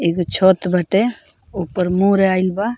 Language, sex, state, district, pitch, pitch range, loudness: Bhojpuri, female, Bihar, Muzaffarpur, 185 Hz, 180-200 Hz, -17 LUFS